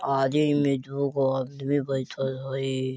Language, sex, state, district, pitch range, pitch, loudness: Hindi, male, Bihar, Vaishali, 135-140 Hz, 135 Hz, -26 LUFS